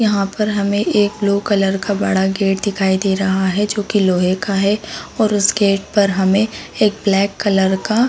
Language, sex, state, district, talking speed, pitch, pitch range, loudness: Hindi, female, Chhattisgarh, Bilaspur, 185 wpm, 200 Hz, 195-205 Hz, -16 LUFS